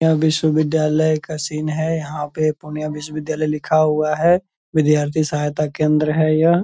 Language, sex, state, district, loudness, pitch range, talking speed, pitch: Hindi, male, Bihar, Purnia, -19 LUFS, 150-155 Hz, 155 wpm, 155 Hz